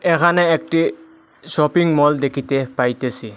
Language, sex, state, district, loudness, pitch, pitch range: Bengali, male, Assam, Hailakandi, -18 LUFS, 150 Hz, 135-170 Hz